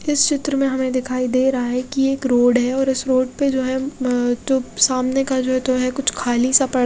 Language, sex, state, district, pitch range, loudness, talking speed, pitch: Hindi, female, Bihar, Kaimur, 255-270 Hz, -19 LUFS, 280 wpm, 260 Hz